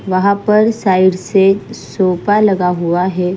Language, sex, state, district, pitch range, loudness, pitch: Hindi, female, Punjab, Fazilka, 180-200 Hz, -13 LUFS, 190 Hz